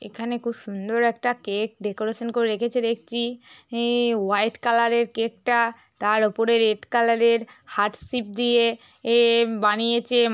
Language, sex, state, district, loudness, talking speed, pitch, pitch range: Bengali, female, West Bengal, North 24 Parganas, -22 LUFS, 135 wpm, 230 Hz, 220-235 Hz